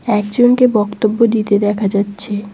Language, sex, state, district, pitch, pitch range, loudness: Bengali, female, West Bengal, Cooch Behar, 210 Hz, 205-230 Hz, -14 LUFS